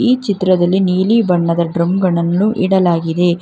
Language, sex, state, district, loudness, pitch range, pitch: Kannada, female, Karnataka, Bangalore, -14 LUFS, 170-190 Hz, 185 Hz